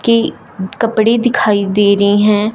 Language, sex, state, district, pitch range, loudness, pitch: Hindi, male, Punjab, Fazilka, 200-230 Hz, -13 LUFS, 210 Hz